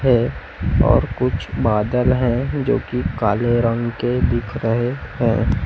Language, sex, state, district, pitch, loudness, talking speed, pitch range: Hindi, male, Chhattisgarh, Raipur, 120 Hz, -19 LUFS, 140 wpm, 115-125 Hz